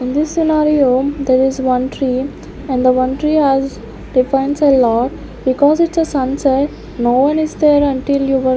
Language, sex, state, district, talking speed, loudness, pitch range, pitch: English, female, Chandigarh, Chandigarh, 190 wpm, -15 LUFS, 255-290 Hz, 270 Hz